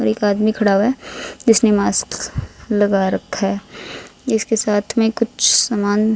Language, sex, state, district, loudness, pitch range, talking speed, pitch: Hindi, female, Haryana, Rohtak, -17 LUFS, 205-225 Hz, 155 wpm, 210 Hz